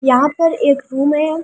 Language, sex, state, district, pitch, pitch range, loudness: Hindi, female, Delhi, New Delhi, 285 Hz, 275-315 Hz, -15 LUFS